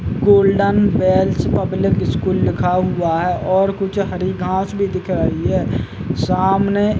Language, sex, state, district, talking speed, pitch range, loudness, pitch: Hindi, male, Uttar Pradesh, Muzaffarnagar, 135 wpm, 175-195 Hz, -17 LUFS, 185 Hz